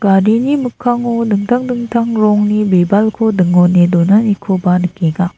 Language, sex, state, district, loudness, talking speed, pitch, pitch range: Garo, female, Meghalaya, South Garo Hills, -13 LUFS, 100 wpm, 210 Hz, 180-230 Hz